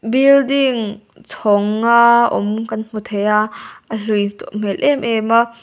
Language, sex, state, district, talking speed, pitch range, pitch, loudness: Mizo, female, Mizoram, Aizawl, 160 wpm, 210-235 Hz, 220 Hz, -16 LUFS